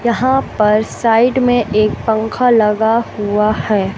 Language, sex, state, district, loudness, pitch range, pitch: Hindi, male, Madhya Pradesh, Katni, -14 LUFS, 210-240 Hz, 220 Hz